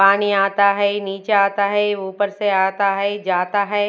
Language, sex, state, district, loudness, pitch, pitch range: Hindi, female, Chhattisgarh, Raipur, -18 LUFS, 200 Hz, 195-205 Hz